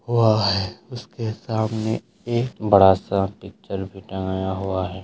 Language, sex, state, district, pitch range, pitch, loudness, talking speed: Hindi, male, Bihar, Madhepura, 95-110 Hz, 100 Hz, -22 LUFS, 130 wpm